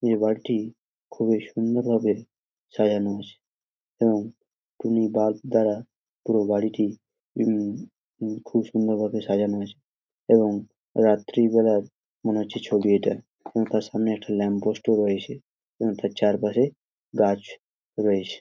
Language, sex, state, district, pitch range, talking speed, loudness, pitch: Bengali, male, West Bengal, Jhargram, 105-115 Hz, 120 wpm, -24 LUFS, 110 Hz